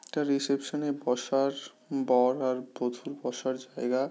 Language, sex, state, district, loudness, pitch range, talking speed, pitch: Bengali, male, West Bengal, Paschim Medinipur, -30 LUFS, 125-140 Hz, 130 wpm, 130 Hz